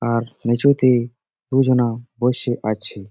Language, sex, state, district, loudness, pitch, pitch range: Bengali, male, West Bengal, Jalpaiguri, -19 LUFS, 120 Hz, 115-125 Hz